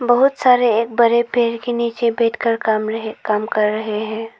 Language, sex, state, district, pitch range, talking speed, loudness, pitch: Hindi, female, Arunachal Pradesh, Lower Dibang Valley, 220-240 Hz, 190 wpm, -18 LUFS, 230 Hz